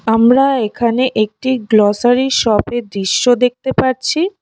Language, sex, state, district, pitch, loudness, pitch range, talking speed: Bengali, female, West Bengal, Alipurduar, 245 Hz, -14 LUFS, 220-260 Hz, 110 wpm